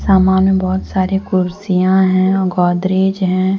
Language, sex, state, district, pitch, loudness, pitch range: Hindi, female, Jharkhand, Deoghar, 190 Hz, -14 LUFS, 185-190 Hz